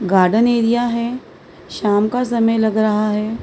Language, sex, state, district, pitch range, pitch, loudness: Hindi, female, Maharashtra, Mumbai Suburban, 210-235 Hz, 225 Hz, -17 LUFS